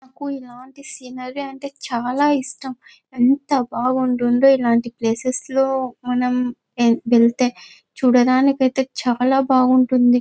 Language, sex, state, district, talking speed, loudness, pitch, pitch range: Telugu, female, Andhra Pradesh, Anantapur, 100 wpm, -18 LUFS, 255 Hz, 245-270 Hz